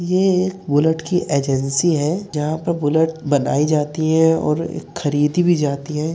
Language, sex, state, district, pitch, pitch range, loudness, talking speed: Hindi, male, Uttar Pradesh, Etah, 160 Hz, 145-170 Hz, -18 LUFS, 165 wpm